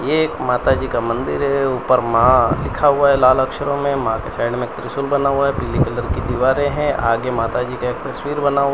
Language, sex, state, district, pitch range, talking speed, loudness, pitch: Hindi, male, Gujarat, Valsad, 120-140 Hz, 245 wpm, -18 LUFS, 130 Hz